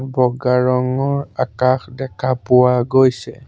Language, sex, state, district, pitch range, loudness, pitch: Assamese, male, Assam, Sonitpur, 125-130 Hz, -17 LUFS, 130 Hz